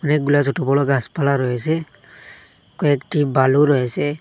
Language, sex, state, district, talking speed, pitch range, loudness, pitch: Bengali, male, Assam, Hailakandi, 115 wpm, 130-150 Hz, -18 LUFS, 140 Hz